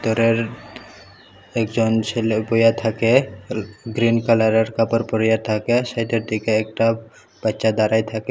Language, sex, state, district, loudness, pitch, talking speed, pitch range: Bengali, male, Tripura, Unakoti, -20 LUFS, 115 Hz, 115 wpm, 110-115 Hz